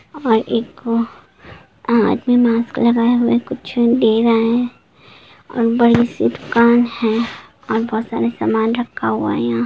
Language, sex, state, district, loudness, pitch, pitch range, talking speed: Hindi, female, Bihar, Gopalganj, -16 LUFS, 235 Hz, 220-240 Hz, 145 wpm